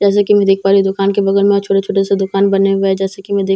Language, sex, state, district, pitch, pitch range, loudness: Hindi, female, Bihar, Katihar, 195 Hz, 195-200 Hz, -13 LUFS